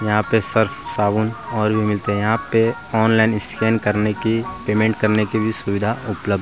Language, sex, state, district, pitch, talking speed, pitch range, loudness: Hindi, male, Bihar, Vaishali, 110 Hz, 185 wpm, 105-115 Hz, -19 LUFS